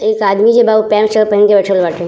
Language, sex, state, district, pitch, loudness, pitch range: Bhojpuri, female, Uttar Pradesh, Ghazipur, 210 Hz, -11 LUFS, 195-215 Hz